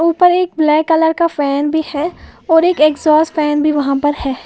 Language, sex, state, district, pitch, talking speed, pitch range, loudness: Hindi, female, Uttar Pradesh, Lalitpur, 310 Hz, 200 wpm, 295-330 Hz, -14 LUFS